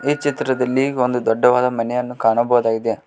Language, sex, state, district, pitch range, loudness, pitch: Kannada, male, Karnataka, Koppal, 115-130 Hz, -18 LUFS, 125 Hz